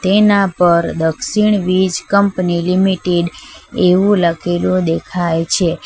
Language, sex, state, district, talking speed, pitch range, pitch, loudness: Gujarati, female, Gujarat, Valsad, 100 wpm, 170-195 Hz, 180 Hz, -14 LUFS